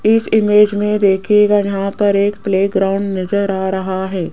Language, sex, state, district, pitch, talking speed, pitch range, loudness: Hindi, female, Rajasthan, Jaipur, 200 Hz, 165 wpm, 190-210 Hz, -15 LUFS